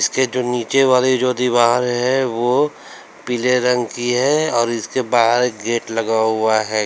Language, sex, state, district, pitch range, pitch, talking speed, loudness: Hindi, male, Uttar Pradesh, Lalitpur, 115-125 Hz, 120 Hz, 165 wpm, -17 LUFS